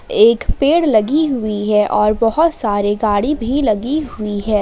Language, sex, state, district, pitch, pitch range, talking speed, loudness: Hindi, female, Jharkhand, Palamu, 225 Hz, 210-305 Hz, 170 wpm, -15 LUFS